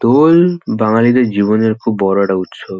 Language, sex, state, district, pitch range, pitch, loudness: Bengali, male, West Bengal, North 24 Parganas, 100-125 Hz, 110 Hz, -13 LUFS